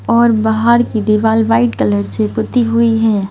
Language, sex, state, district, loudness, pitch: Hindi, female, Madhya Pradesh, Bhopal, -13 LUFS, 220 Hz